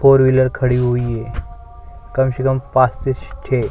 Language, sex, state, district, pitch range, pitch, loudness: Hindi, male, Chhattisgarh, Sukma, 115-130 Hz, 130 Hz, -17 LUFS